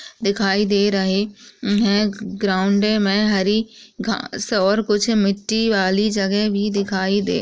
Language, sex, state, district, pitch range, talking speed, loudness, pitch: Hindi, female, Uttar Pradesh, Muzaffarnagar, 200-215 Hz, 145 wpm, -19 LUFS, 205 Hz